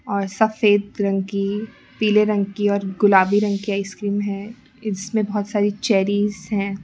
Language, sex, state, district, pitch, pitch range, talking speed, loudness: Hindi, female, Rajasthan, Jaipur, 205 Hz, 200-210 Hz, 160 wpm, -20 LUFS